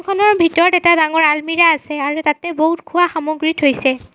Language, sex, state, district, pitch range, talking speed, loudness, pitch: Assamese, female, Assam, Sonitpur, 300-345 Hz, 175 wpm, -14 LUFS, 320 Hz